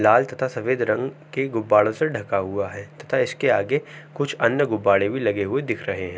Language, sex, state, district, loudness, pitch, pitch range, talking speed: Hindi, male, Uttar Pradesh, Jalaun, -22 LUFS, 115 Hz, 100-145 Hz, 195 wpm